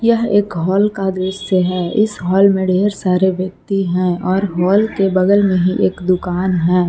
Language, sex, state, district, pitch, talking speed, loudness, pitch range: Hindi, female, Jharkhand, Palamu, 185 Hz, 190 wpm, -15 LUFS, 180-200 Hz